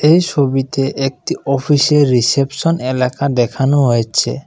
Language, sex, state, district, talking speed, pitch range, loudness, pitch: Bengali, male, Assam, Kamrup Metropolitan, 105 wpm, 130-145 Hz, -15 LUFS, 135 Hz